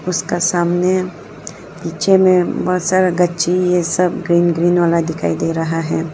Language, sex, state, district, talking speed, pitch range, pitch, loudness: Hindi, female, Arunachal Pradesh, Lower Dibang Valley, 155 wpm, 170-180 Hz, 175 Hz, -15 LUFS